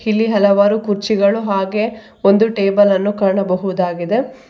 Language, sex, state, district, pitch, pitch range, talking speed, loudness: Kannada, female, Karnataka, Bangalore, 205 Hz, 195-215 Hz, 105 wpm, -15 LUFS